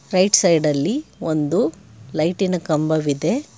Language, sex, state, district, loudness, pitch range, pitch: Kannada, male, Karnataka, Bangalore, -19 LUFS, 155-190 Hz, 165 Hz